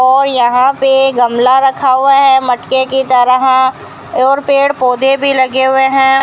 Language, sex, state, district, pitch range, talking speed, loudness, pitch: Hindi, female, Rajasthan, Bikaner, 255-270 Hz, 165 wpm, -10 LUFS, 265 Hz